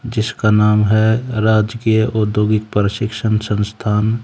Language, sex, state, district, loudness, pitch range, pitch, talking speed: Hindi, male, Haryana, Charkhi Dadri, -16 LUFS, 105-110 Hz, 110 Hz, 100 wpm